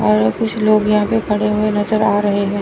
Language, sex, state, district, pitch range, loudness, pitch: Hindi, female, Chandigarh, Chandigarh, 205-215 Hz, -16 LUFS, 210 Hz